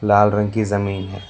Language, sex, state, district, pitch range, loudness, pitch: Hindi, male, Karnataka, Bangalore, 100-105 Hz, -19 LUFS, 100 Hz